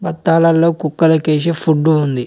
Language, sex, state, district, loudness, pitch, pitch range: Telugu, male, Telangana, Mahabubabad, -14 LUFS, 160 Hz, 155-165 Hz